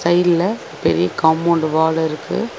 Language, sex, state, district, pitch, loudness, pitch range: Tamil, female, Tamil Nadu, Chennai, 170 Hz, -17 LUFS, 160-180 Hz